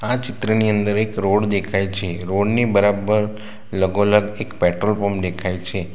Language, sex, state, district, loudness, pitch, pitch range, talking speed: Gujarati, male, Gujarat, Valsad, -19 LUFS, 105 Hz, 95-105 Hz, 170 wpm